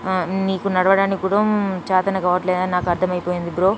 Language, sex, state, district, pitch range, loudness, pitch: Telugu, female, Telangana, Nalgonda, 180-195 Hz, -19 LUFS, 185 Hz